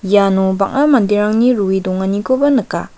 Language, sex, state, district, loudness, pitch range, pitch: Garo, female, Meghalaya, West Garo Hills, -14 LUFS, 190-250 Hz, 205 Hz